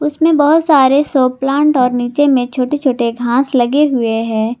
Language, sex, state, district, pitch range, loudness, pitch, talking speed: Hindi, female, Jharkhand, Garhwa, 245-290 Hz, -13 LUFS, 265 Hz, 180 wpm